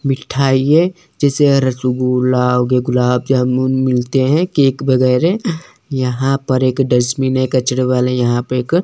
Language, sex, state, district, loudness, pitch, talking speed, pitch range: Hindi, male, Chandigarh, Chandigarh, -15 LUFS, 130 Hz, 150 wpm, 125-140 Hz